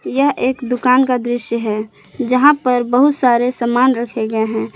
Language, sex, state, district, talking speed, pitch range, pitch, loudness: Hindi, female, Jharkhand, Palamu, 175 wpm, 235-255 Hz, 245 Hz, -15 LUFS